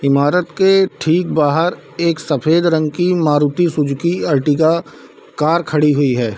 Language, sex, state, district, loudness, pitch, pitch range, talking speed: Hindi, male, Bihar, Darbhanga, -15 LUFS, 160 Hz, 145-170 Hz, 130 wpm